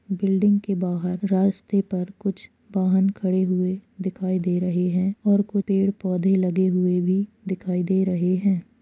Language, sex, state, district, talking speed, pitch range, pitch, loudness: Hindi, female, Chhattisgarh, Kabirdham, 155 wpm, 185-195 Hz, 190 Hz, -23 LUFS